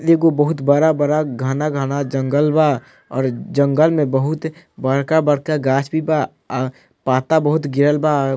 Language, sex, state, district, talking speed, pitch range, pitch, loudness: Bhojpuri, male, Bihar, Muzaffarpur, 135 wpm, 135-155 Hz, 145 Hz, -18 LUFS